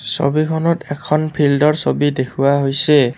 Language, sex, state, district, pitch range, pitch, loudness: Assamese, male, Assam, Kamrup Metropolitan, 140-155 Hz, 145 Hz, -16 LUFS